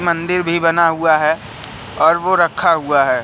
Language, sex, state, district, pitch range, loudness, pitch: Hindi, male, Madhya Pradesh, Katni, 150-170 Hz, -15 LUFS, 160 Hz